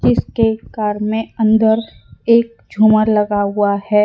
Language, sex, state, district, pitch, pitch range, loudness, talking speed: Hindi, female, Gujarat, Valsad, 215 Hz, 210-225 Hz, -15 LUFS, 135 wpm